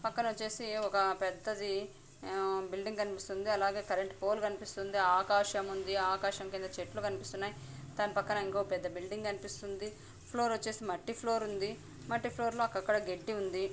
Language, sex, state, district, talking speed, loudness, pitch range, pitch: Telugu, female, Andhra Pradesh, Anantapur, 145 wpm, -36 LUFS, 190-215 Hz, 200 Hz